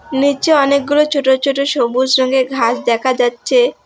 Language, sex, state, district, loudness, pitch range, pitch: Bengali, female, West Bengal, Alipurduar, -14 LUFS, 255-280 Hz, 265 Hz